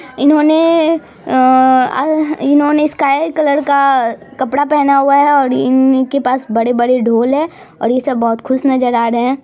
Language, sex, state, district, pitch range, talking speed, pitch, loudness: Hindi, female, Bihar, Araria, 255-290 Hz, 165 wpm, 270 Hz, -12 LUFS